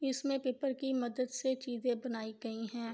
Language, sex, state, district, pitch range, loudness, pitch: Urdu, female, Andhra Pradesh, Anantapur, 235-265 Hz, -37 LUFS, 255 Hz